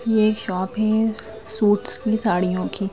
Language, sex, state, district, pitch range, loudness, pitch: Hindi, female, Madhya Pradesh, Bhopal, 195-220 Hz, -20 LUFS, 215 Hz